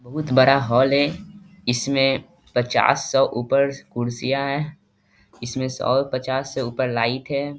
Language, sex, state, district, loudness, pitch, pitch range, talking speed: Hindi, male, Bihar, East Champaran, -21 LUFS, 130 Hz, 120-140 Hz, 135 wpm